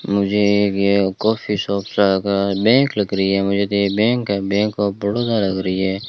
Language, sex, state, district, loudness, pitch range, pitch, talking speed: Hindi, male, Rajasthan, Bikaner, -18 LUFS, 100-105 Hz, 100 Hz, 215 wpm